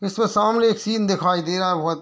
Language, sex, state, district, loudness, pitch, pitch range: Hindi, male, Bihar, Muzaffarpur, -20 LUFS, 195 Hz, 180-220 Hz